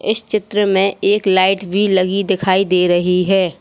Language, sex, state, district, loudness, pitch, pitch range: Hindi, female, Uttar Pradesh, Lalitpur, -15 LUFS, 195 Hz, 185-200 Hz